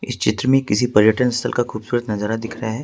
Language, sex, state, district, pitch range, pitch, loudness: Hindi, male, Jharkhand, Ranchi, 110-125 Hz, 115 Hz, -19 LUFS